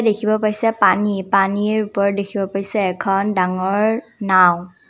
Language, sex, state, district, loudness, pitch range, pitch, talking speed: Assamese, female, Assam, Kamrup Metropolitan, -18 LUFS, 195-215 Hz, 200 Hz, 120 wpm